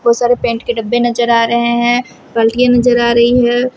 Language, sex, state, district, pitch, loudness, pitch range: Hindi, female, Haryana, Rohtak, 240 Hz, -12 LUFS, 235-245 Hz